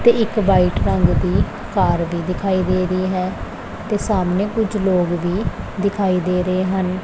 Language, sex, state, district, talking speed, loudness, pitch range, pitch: Punjabi, female, Punjab, Pathankot, 170 wpm, -19 LUFS, 180-200 Hz, 185 Hz